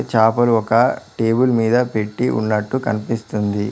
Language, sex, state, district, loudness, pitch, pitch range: Telugu, male, Telangana, Mahabubabad, -18 LUFS, 115 Hz, 110-120 Hz